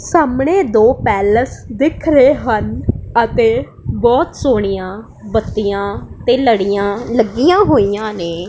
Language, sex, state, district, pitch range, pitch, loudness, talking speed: Punjabi, female, Punjab, Pathankot, 200-280 Hz, 230 Hz, -14 LUFS, 105 wpm